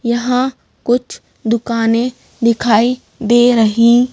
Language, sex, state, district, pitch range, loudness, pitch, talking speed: Hindi, female, Madhya Pradesh, Bhopal, 230-250 Hz, -14 LUFS, 235 Hz, 85 wpm